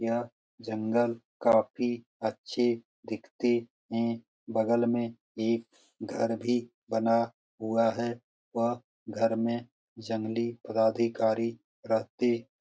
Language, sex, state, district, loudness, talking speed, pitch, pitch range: Hindi, male, Bihar, Lakhisarai, -30 LUFS, 105 wpm, 115 Hz, 115-120 Hz